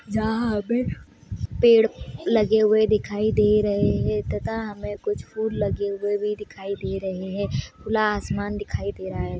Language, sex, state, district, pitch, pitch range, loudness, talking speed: Hindi, female, Bihar, Samastipur, 210 Hz, 200-220 Hz, -24 LUFS, 165 wpm